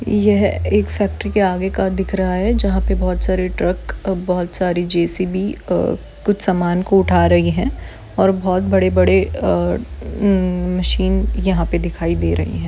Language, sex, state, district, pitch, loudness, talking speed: Hindi, female, Chhattisgarh, Bilaspur, 180 Hz, -17 LUFS, 180 wpm